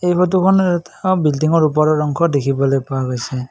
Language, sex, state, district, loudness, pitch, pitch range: Assamese, male, Assam, Kamrup Metropolitan, -16 LUFS, 155 Hz, 135-180 Hz